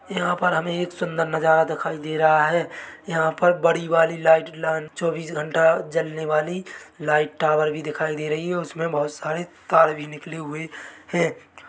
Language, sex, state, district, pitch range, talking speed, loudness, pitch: Hindi, male, Chhattisgarh, Bilaspur, 155-165 Hz, 180 wpm, -22 LUFS, 160 Hz